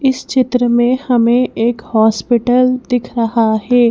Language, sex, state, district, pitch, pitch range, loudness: Hindi, female, Madhya Pradesh, Bhopal, 245 Hz, 230-250 Hz, -14 LUFS